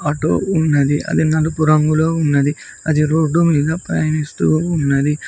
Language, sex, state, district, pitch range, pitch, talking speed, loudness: Telugu, male, Telangana, Mahabubabad, 150-160 Hz, 155 Hz, 125 wpm, -16 LUFS